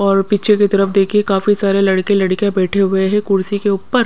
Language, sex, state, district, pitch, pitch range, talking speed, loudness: Hindi, female, Punjab, Pathankot, 200 Hz, 195-205 Hz, 235 wpm, -14 LUFS